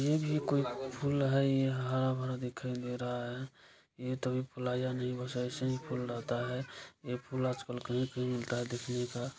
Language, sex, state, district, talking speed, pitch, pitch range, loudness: Hindi, male, Bihar, Supaul, 185 wpm, 125 Hz, 125-130 Hz, -35 LUFS